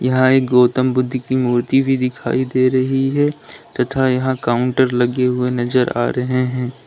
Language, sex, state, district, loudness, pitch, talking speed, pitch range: Hindi, male, Uttar Pradesh, Lalitpur, -17 LUFS, 130 Hz, 175 wpm, 125-130 Hz